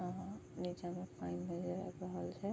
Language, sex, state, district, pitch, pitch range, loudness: Maithili, female, Bihar, Vaishali, 180 Hz, 175-185 Hz, -44 LUFS